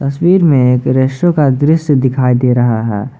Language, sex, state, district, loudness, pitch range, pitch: Hindi, male, Jharkhand, Ranchi, -11 LUFS, 125-150 Hz, 130 Hz